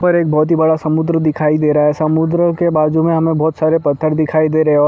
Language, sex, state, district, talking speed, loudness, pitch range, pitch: Hindi, male, Chhattisgarh, Bastar, 295 wpm, -14 LUFS, 155-160 Hz, 155 Hz